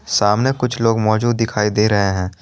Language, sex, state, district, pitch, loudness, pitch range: Hindi, male, Jharkhand, Garhwa, 110 Hz, -17 LUFS, 105-115 Hz